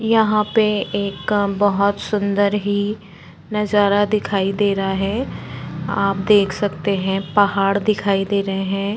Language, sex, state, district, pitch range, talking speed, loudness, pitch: Hindi, female, Uttarakhand, Tehri Garhwal, 195-210 Hz, 125 wpm, -19 LUFS, 200 Hz